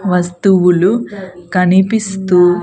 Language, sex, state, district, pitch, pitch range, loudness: Telugu, female, Andhra Pradesh, Sri Satya Sai, 185 Hz, 180-195 Hz, -12 LUFS